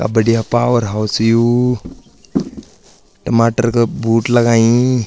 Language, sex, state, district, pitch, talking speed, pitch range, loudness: Garhwali, male, Uttarakhand, Uttarkashi, 115 Hz, 105 wpm, 115-120 Hz, -14 LUFS